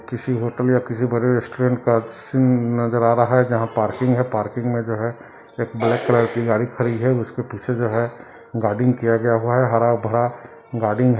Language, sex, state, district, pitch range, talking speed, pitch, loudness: Hindi, male, Bihar, Sitamarhi, 115-125 Hz, 205 wpm, 120 Hz, -20 LUFS